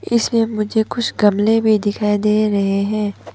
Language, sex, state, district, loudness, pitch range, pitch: Hindi, female, Arunachal Pradesh, Papum Pare, -17 LUFS, 205-225 Hz, 210 Hz